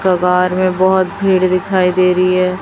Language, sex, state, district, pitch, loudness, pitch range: Hindi, female, Chhattisgarh, Raipur, 185 Hz, -13 LUFS, 180-185 Hz